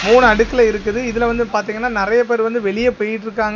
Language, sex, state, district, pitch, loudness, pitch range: Tamil, male, Tamil Nadu, Kanyakumari, 230 Hz, -16 LUFS, 215-240 Hz